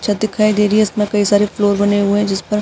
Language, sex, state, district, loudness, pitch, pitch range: Hindi, female, Uttar Pradesh, Jyotiba Phule Nagar, -15 LUFS, 205 Hz, 205-210 Hz